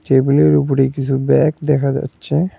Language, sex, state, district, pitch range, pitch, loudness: Bengali, male, West Bengal, Cooch Behar, 135-150 Hz, 135 Hz, -15 LUFS